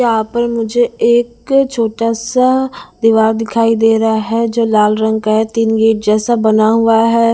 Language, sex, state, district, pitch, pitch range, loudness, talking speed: Hindi, female, Bihar, West Champaran, 225 Hz, 220-235 Hz, -13 LUFS, 190 wpm